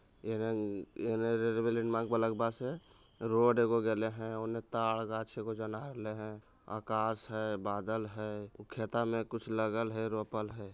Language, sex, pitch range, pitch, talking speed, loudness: Bhojpuri, male, 110-115 Hz, 110 Hz, 140 wpm, -35 LUFS